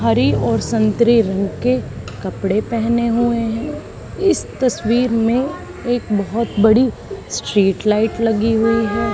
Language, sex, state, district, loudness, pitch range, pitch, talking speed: Hindi, female, Haryana, Charkhi Dadri, -17 LUFS, 200-235 Hz, 225 Hz, 130 wpm